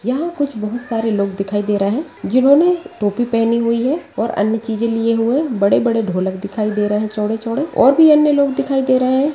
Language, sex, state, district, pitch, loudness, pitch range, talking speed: Hindi, female, Uttarakhand, Tehri Garhwal, 230 Hz, -16 LUFS, 210-275 Hz, 220 wpm